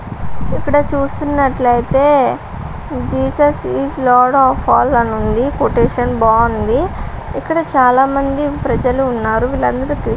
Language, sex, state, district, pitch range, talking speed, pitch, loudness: Telugu, female, Andhra Pradesh, Visakhapatnam, 230-280 Hz, 110 wpm, 255 Hz, -14 LUFS